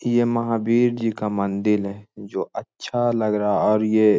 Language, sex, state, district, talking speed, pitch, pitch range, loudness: Hindi, male, Jharkhand, Jamtara, 185 wpm, 110 Hz, 105-120 Hz, -22 LUFS